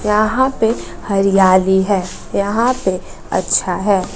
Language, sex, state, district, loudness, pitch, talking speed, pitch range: Hindi, female, Bihar, West Champaran, -16 LUFS, 200 Hz, 115 wpm, 190-220 Hz